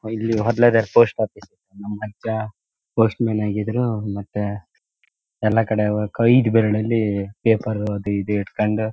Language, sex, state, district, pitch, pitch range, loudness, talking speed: Kannada, male, Karnataka, Shimoga, 110 Hz, 105-115 Hz, -20 LUFS, 130 wpm